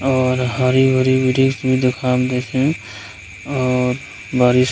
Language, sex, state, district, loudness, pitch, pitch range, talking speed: Maithili, male, Bihar, Begusarai, -17 LUFS, 130 Hz, 125-130 Hz, 125 wpm